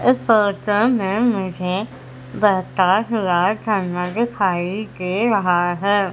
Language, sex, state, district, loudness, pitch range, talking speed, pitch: Hindi, female, Madhya Pradesh, Umaria, -19 LUFS, 180-215 Hz, 110 wpm, 195 Hz